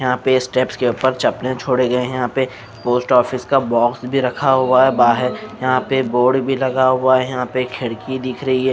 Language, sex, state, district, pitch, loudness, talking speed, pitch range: Hindi, male, Maharashtra, Mumbai Suburban, 130 Hz, -17 LUFS, 225 wpm, 125-130 Hz